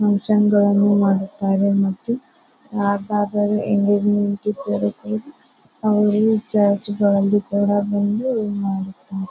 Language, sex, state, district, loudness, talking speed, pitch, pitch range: Kannada, female, Karnataka, Bijapur, -19 LUFS, 95 wpm, 205 Hz, 200-210 Hz